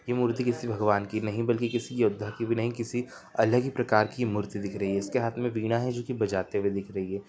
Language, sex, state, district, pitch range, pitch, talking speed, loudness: Hindi, male, Bihar, Muzaffarpur, 105-120 Hz, 115 Hz, 270 wpm, -29 LUFS